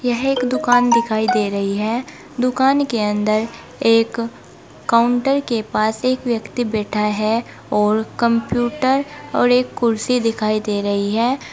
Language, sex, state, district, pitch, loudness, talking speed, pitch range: Hindi, female, Uttar Pradesh, Saharanpur, 235 Hz, -18 LUFS, 140 wpm, 215-250 Hz